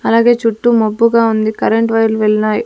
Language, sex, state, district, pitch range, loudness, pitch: Telugu, female, Andhra Pradesh, Sri Satya Sai, 215-230 Hz, -13 LUFS, 225 Hz